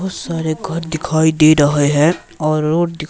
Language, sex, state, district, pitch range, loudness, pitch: Hindi, male, Himachal Pradesh, Shimla, 155-165 Hz, -15 LUFS, 160 Hz